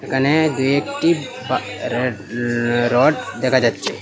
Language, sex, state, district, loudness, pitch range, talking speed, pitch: Bengali, male, Assam, Hailakandi, -19 LUFS, 120-145 Hz, 105 wpm, 130 Hz